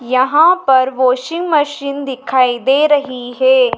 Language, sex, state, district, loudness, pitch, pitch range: Hindi, female, Madhya Pradesh, Dhar, -14 LUFS, 275 Hz, 255-305 Hz